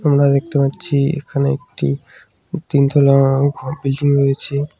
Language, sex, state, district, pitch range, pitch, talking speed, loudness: Bengali, male, West Bengal, Cooch Behar, 140-145 Hz, 140 Hz, 115 wpm, -17 LUFS